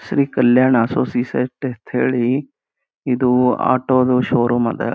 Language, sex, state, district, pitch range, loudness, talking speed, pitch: Kannada, male, Karnataka, Gulbarga, 120-130 Hz, -17 LUFS, 110 wpm, 125 Hz